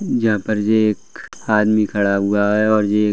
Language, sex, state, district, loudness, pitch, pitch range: Hindi, male, Bihar, Saran, -17 LUFS, 105 Hz, 105-110 Hz